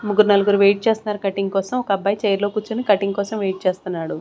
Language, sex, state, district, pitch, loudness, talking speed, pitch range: Telugu, female, Andhra Pradesh, Sri Satya Sai, 200 Hz, -19 LUFS, 215 wpm, 195-210 Hz